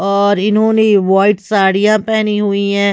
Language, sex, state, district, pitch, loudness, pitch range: Hindi, female, Chhattisgarh, Raipur, 200 Hz, -12 LUFS, 200-215 Hz